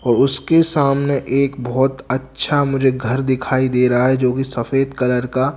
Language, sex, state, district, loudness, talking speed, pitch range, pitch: Hindi, male, Bihar, Katihar, -17 LUFS, 185 wpm, 125-140 Hz, 130 Hz